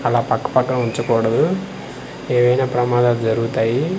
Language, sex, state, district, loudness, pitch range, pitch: Telugu, male, Andhra Pradesh, Manyam, -18 LUFS, 115-125 Hz, 120 Hz